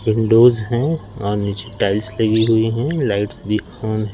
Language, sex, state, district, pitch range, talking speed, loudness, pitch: Hindi, male, Madhya Pradesh, Katni, 105-120 Hz, 175 wpm, -17 LUFS, 110 Hz